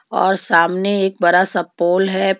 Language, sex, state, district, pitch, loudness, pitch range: Hindi, female, Jharkhand, Ranchi, 185 Hz, -16 LUFS, 175-195 Hz